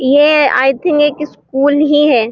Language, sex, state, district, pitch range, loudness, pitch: Hindi, female, Uttar Pradesh, Muzaffarnagar, 270-300 Hz, -11 LUFS, 290 Hz